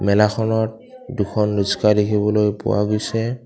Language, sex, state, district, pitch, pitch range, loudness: Assamese, male, Assam, Kamrup Metropolitan, 105 Hz, 105-110 Hz, -19 LUFS